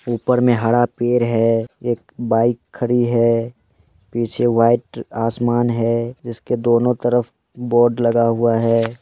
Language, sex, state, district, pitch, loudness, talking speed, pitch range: Hindi, male, Jharkhand, Jamtara, 120 Hz, -18 LUFS, 135 wpm, 115-120 Hz